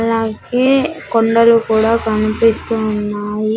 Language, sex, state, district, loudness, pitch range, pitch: Telugu, female, Andhra Pradesh, Sri Satya Sai, -15 LUFS, 215-230 Hz, 225 Hz